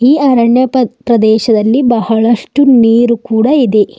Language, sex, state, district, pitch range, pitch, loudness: Kannada, female, Karnataka, Bidar, 225-260 Hz, 235 Hz, -10 LUFS